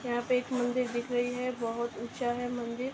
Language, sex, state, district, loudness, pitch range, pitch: Hindi, female, Uttar Pradesh, Ghazipur, -32 LUFS, 240-250 Hz, 245 Hz